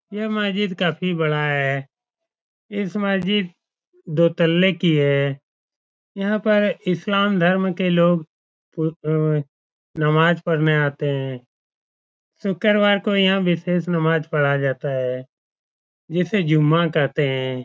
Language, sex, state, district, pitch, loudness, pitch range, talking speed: Hindi, male, Bihar, Saran, 170 Hz, -20 LUFS, 150-195 Hz, 110 wpm